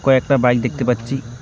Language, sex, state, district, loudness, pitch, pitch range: Bengali, male, West Bengal, Alipurduar, -18 LUFS, 125 Hz, 120-135 Hz